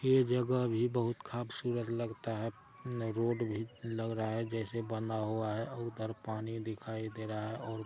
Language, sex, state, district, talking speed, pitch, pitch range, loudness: Hindi, male, Bihar, Araria, 175 wpm, 115 Hz, 110-120 Hz, -37 LUFS